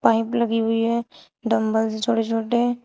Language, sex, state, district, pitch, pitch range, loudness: Hindi, female, Uttar Pradesh, Shamli, 225 Hz, 225-235 Hz, -22 LUFS